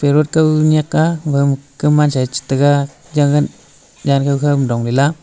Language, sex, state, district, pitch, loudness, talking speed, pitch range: Wancho, male, Arunachal Pradesh, Longding, 145 Hz, -15 LUFS, 195 wpm, 140-150 Hz